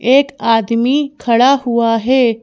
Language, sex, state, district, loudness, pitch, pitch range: Hindi, female, Madhya Pradesh, Bhopal, -13 LUFS, 240 Hz, 230-265 Hz